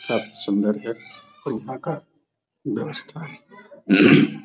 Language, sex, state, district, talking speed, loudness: Hindi, male, Bihar, Araria, 110 wpm, -21 LUFS